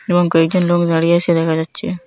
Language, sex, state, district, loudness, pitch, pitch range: Bengali, female, Assam, Hailakandi, -14 LUFS, 170 Hz, 165-175 Hz